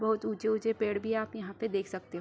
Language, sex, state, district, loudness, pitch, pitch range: Hindi, female, Bihar, Supaul, -33 LUFS, 220 Hz, 200-220 Hz